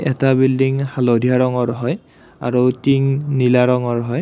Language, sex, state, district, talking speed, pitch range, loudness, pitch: Assamese, male, Assam, Kamrup Metropolitan, 140 wpm, 125-135 Hz, -17 LUFS, 130 Hz